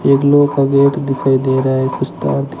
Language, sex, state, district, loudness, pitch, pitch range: Hindi, male, Rajasthan, Bikaner, -14 LUFS, 135 Hz, 130-140 Hz